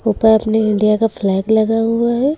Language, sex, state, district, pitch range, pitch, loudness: Hindi, female, Uttar Pradesh, Lucknow, 215-225 Hz, 220 Hz, -15 LUFS